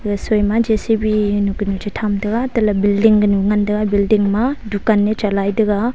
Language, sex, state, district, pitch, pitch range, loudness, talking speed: Wancho, female, Arunachal Pradesh, Longding, 210 Hz, 205-220 Hz, -16 LUFS, 140 wpm